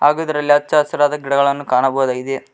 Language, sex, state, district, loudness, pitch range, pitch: Kannada, male, Karnataka, Koppal, -16 LUFS, 135-145 Hz, 145 Hz